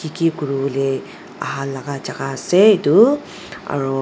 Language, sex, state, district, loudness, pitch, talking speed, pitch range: Nagamese, female, Nagaland, Dimapur, -18 LUFS, 140 Hz, 120 wpm, 135-165 Hz